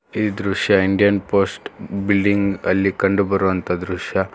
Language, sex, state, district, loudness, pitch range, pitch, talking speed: Kannada, male, Karnataka, Bangalore, -19 LUFS, 95-100 Hz, 100 Hz, 125 wpm